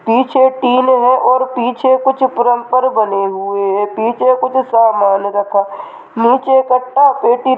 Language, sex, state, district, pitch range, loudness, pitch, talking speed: Hindi, male, Bihar, Begusarai, 215-260 Hz, -13 LUFS, 245 Hz, 135 wpm